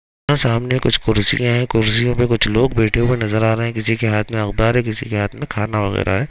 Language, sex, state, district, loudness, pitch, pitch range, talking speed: Hindi, male, Chhattisgarh, Rajnandgaon, -17 LUFS, 115 Hz, 110-120 Hz, 265 wpm